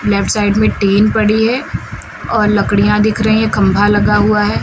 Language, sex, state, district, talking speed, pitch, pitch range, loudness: Hindi, male, Uttar Pradesh, Lucknow, 195 wpm, 210 Hz, 205-215 Hz, -12 LUFS